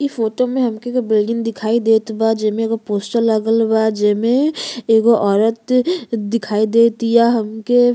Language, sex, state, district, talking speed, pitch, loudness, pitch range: Bhojpuri, female, Uttar Pradesh, Gorakhpur, 160 wpm, 225 Hz, -16 LUFS, 220-235 Hz